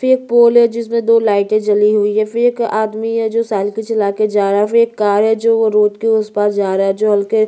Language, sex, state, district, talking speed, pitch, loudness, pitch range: Hindi, female, Chhattisgarh, Sukma, 255 wpm, 215 Hz, -14 LUFS, 205-230 Hz